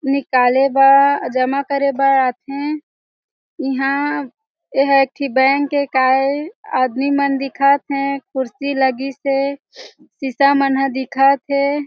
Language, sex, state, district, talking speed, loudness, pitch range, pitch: Chhattisgarhi, female, Chhattisgarh, Jashpur, 100 wpm, -16 LUFS, 270-280 Hz, 275 Hz